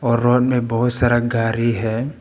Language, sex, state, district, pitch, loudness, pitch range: Hindi, male, Arunachal Pradesh, Papum Pare, 120 Hz, -18 LUFS, 115-125 Hz